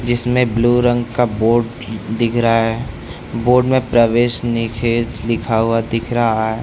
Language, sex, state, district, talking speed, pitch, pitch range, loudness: Hindi, male, Bihar, Saran, 155 wpm, 115 Hz, 115-120 Hz, -16 LUFS